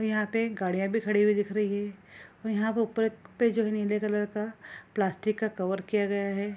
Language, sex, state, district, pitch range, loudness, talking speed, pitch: Hindi, female, Bihar, Kishanganj, 200-220 Hz, -29 LUFS, 235 wpm, 210 Hz